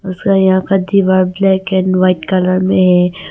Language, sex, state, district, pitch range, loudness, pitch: Hindi, female, Arunachal Pradesh, Longding, 185-190 Hz, -12 LUFS, 185 Hz